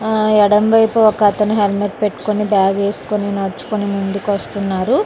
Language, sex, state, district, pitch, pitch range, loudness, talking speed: Telugu, female, Andhra Pradesh, Srikakulam, 205 Hz, 200-215 Hz, -16 LUFS, 120 wpm